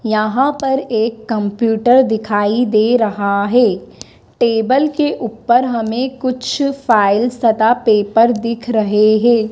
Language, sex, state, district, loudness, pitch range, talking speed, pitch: Hindi, female, Madhya Pradesh, Dhar, -15 LUFS, 220-245 Hz, 120 wpm, 230 Hz